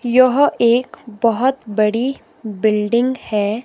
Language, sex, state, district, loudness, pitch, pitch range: Hindi, female, Himachal Pradesh, Shimla, -17 LUFS, 235 Hz, 215-255 Hz